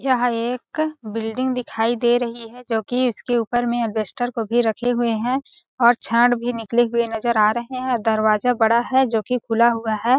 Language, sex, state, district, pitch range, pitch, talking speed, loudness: Hindi, female, Chhattisgarh, Balrampur, 225-245 Hz, 240 Hz, 210 wpm, -20 LUFS